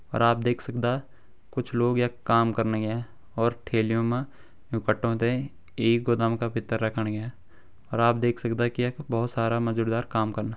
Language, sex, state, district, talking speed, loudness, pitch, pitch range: Garhwali, male, Uttarakhand, Uttarkashi, 180 wpm, -27 LUFS, 115 Hz, 115-120 Hz